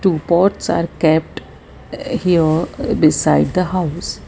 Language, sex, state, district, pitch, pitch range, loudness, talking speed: English, female, Gujarat, Valsad, 175 Hz, 160-190 Hz, -16 LUFS, 125 wpm